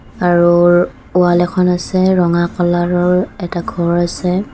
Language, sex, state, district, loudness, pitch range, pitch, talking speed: Assamese, female, Assam, Kamrup Metropolitan, -14 LUFS, 175-180 Hz, 175 Hz, 120 wpm